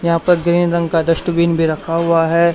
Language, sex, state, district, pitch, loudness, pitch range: Hindi, male, Haryana, Charkhi Dadri, 170 Hz, -15 LUFS, 165-170 Hz